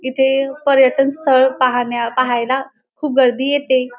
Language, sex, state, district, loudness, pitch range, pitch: Marathi, male, Maharashtra, Dhule, -15 LUFS, 255-275 Hz, 265 Hz